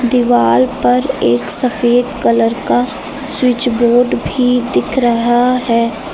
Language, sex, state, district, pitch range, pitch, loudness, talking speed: Hindi, female, Uttar Pradesh, Lucknow, 230-250 Hz, 245 Hz, -13 LUFS, 115 wpm